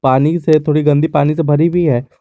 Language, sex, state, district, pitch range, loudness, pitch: Hindi, male, Jharkhand, Garhwa, 145-160 Hz, -13 LUFS, 150 Hz